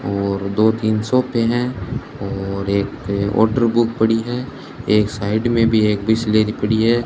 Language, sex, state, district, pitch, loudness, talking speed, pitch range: Hindi, male, Rajasthan, Bikaner, 110 Hz, -18 LUFS, 160 wpm, 100-115 Hz